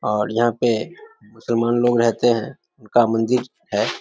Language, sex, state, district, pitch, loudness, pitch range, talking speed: Maithili, male, Bihar, Samastipur, 120 Hz, -20 LUFS, 115-120 Hz, 150 wpm